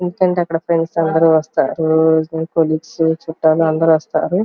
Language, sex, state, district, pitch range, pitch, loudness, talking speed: Telugu, female, Andhra Pradesh, Guntur, 160-165 Hz, 160 Hz, -16 LUFS, 120 wpm